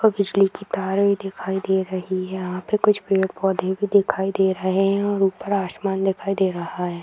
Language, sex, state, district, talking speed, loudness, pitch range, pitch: Hindi, female, Bihar, Jamui, 215 wpm, -22 LUFS, 185-200 Hz, 195 Hz